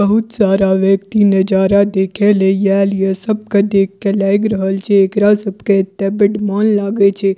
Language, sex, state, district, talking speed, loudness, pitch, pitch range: Maithili, female, Bihar, Purnia, 180 wpm, -14 LUFS, 200 Hz, 195-205 Hz